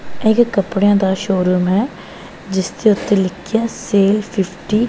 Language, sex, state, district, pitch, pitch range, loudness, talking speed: Punjabi, female, Punjab, Pathankot, 200 Hz, 190-220 Hz, -16 LUFS, 145 wpm